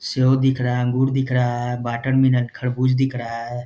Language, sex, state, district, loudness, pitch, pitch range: Hindi, male, Bihar, Jahanabad, -20 LUFS, 125 Hz, 120-130 Hz